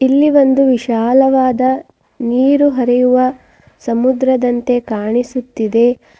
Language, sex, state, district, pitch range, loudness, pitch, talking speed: Kannada, female, Karnataka, Bidar, 240-265 Hz, -13 LUFS, 255 Hz, 70 wpm